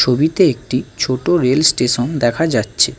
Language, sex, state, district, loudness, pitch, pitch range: Bengali, male, West Bengal, Alipurduar, -15 LUFS, 125 Hz, 120-155 Hz